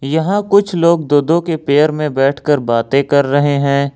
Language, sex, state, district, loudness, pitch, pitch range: Hindi, male, Jharkhand, Ranchi, -14 LUFS, 145 Hz, 140-165 Hz